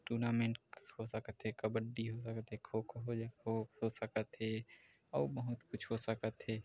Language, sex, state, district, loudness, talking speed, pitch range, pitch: Hindi, male, Chhattisgarh, Korba, -41 LUFS, 170 wpm, 110-115 Hz, 115 Hz